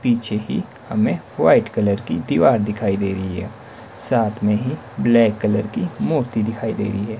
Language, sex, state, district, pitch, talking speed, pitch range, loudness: Hindi, male, Himachal Pradesh, Shimla, 110 Hz, 185 wpm, 105-115 Hz, -20 LUFS